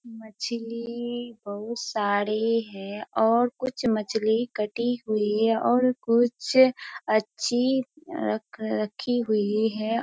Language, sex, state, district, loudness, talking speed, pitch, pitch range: Hindi, female, Bihar, Kishanganj, -26 LUFS, 100 wpm, 230 Hz, 215-240 Hz